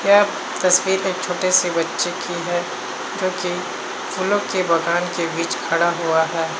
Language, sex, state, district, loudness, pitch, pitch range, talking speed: Hindi, male, Uttar Pradesh, Hamirpur, -20 LUFS, 175 Hz, 170-185 Hz, 155 wpm